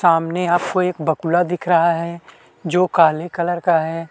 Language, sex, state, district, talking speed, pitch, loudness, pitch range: Hindi, male, Chhattisgarh, Kabirdham, 175 wpm, 170 Hz, -18 LUFS, 165-175 Hz